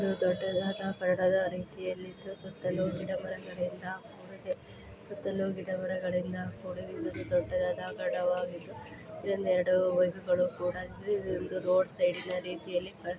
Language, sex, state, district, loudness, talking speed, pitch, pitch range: Kannada, female, Karnataka, Gulbarga, -33 LUFS, 55 wpm, 185 Hz, 180-190 Hz